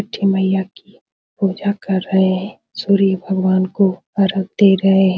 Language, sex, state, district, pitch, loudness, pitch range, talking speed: Hindi, female, Bihar, Supaul, 190 Hz, -17 LUFS, 190-195 Hz, 160 wpm